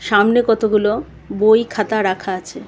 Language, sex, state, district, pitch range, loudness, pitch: Bengali, female, Tripura, West Tripura, 205-220 Hz, -16 LUFS, 210 Hz